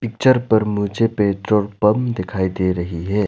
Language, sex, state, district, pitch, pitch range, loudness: Hindi, male, Arunachal Pradesh, Lower Dibang Valley, 105 Hz, 95-110 Hz, -19 LUFS